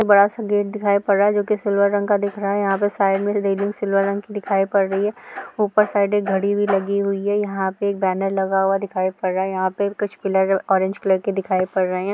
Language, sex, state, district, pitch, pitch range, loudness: Hindi, female, Uttar Pradesh, Jyotiba Phule Nagar, 200 Hz, 195-205 Hz, -20 LUFS